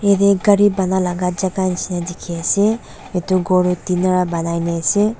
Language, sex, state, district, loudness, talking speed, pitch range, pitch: Nagamese, female, Nagaland, Dimapur, -17 LUFS, 175 wpm, 180-200 Hz, 185 Hz